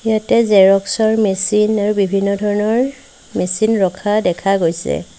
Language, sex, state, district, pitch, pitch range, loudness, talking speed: Assamese, female, Assam, Sonitpur, 205 Hz, 190-215 Hz, -15 LUFS, 125 wpm